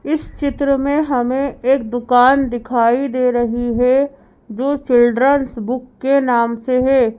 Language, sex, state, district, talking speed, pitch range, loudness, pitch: Hindi, female, Madhya Pradesh, Bhopal, 140 wpm, 240-275 Hz, -16 LUFS, 255 Hz